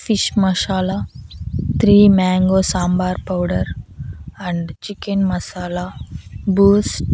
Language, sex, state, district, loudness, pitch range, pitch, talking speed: Telugu, female, Andhra Pradesh, Annamaya, -17 LUFS, 180-200 Hz, 185 Hz, 90 wpm